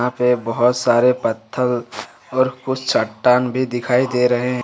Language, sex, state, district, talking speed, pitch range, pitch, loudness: Hindi, male, Jharkhand, Ranchi, 155 wpm, 120-125 Hz, 125 Hz, -18 LUFS